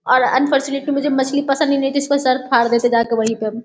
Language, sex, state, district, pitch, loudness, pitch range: Hindi, female, Bihar, Jahanabad, 265 Hz, -17 LUFS, 235-280 Hz